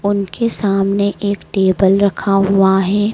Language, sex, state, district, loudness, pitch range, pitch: Hindi, female, Madhya Pradesh, Dhar, -15 LUFS, 195-200 Hz, 200 Hz